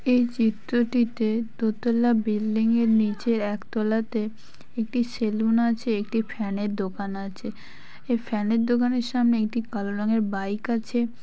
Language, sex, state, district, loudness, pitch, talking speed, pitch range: Bengali, female, West Bengal, Kolkata, -25 LUFS, 225 Hz, 140 wpm, 215-235 Hz